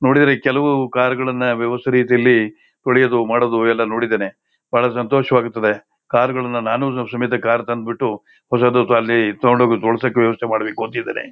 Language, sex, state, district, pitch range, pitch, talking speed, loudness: Kannada, male, Karnataka, Shimoga, 115-125 Hz, 120 Hz, 135 wpm, -17 LUFS